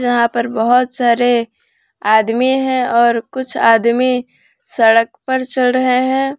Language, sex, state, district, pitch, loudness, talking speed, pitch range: Hindi, female, Jharkhand, Palamu, 250 Hz, -14 LUFS, 130 wpm, 235-260 Hz